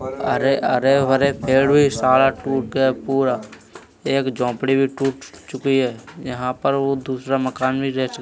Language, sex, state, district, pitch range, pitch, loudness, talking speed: Hindi, male, Uttar Pradesh, Hamirpur, 130-135 Hz, 135 Hz, -19 LUFS, 155 wpm